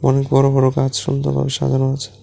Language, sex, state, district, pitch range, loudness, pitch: Bengali, male, Tripura, West Tripura, 100-135 Hz, -17 LUFS, 130 Hz